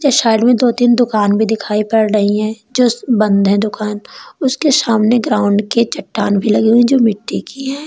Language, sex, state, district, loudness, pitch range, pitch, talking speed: Hindi, female, Uttar Pradesh, Lalitpur, -14 LUFS, 210-245 Hz, 225 Hz, 205 wpm